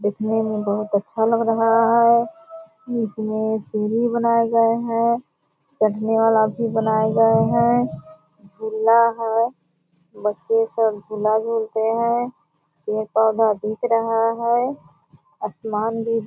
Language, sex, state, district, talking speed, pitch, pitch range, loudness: Hindi, female, Bihar, Purnia, 120 wpm, 225 Hz, 215-230 Hz, -20 LUFS